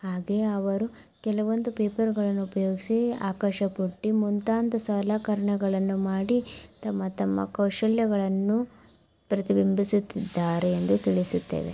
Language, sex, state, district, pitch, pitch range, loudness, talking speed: Kannada, female, Karnataka, Mysore, 200 Hz, 190-215 Hz, -27 LUFS, 75 wpm